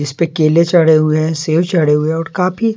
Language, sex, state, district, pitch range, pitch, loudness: Hindi, male, Bihar, Patna, 155-170 Hz, 160 Hz, -13 LUFS